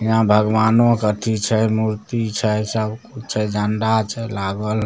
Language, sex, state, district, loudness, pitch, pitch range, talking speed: Maithili, male, Bihar, Samastipur, -19 LUFS, 110 Hz, 105-110 Hz, 175 wpm